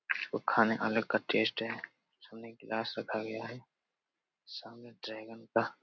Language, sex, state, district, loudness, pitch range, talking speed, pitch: Hindi, male, Bihar, Jamui, -34 LUFS, 110-115 Hz, 175 wpm, 115 Hz